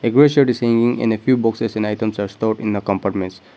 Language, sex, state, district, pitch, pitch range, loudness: English, male, Nagaland, Dimapur, 110 Hz, 100-120 Hz, -18 LUFS